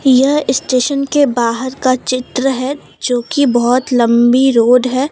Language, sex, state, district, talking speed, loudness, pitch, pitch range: Hindi, female, Jharkhand, Deoghar, 140 wpm, -13 LUFS, 255 Hz, 245-270 Hz